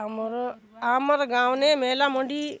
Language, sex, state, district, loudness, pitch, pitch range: Halbi, female, Chhattisgarh, Bastar, -24 LUFS, 255 Hz, 240-285 Hz